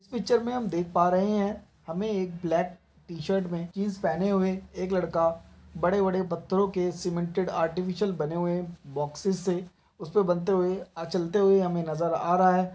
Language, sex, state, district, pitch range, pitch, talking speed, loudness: Hindi, male, Chhattisgarh, Raigarh, 170-195 Hz, 180 Hz, 170 wpm, -28 LUFS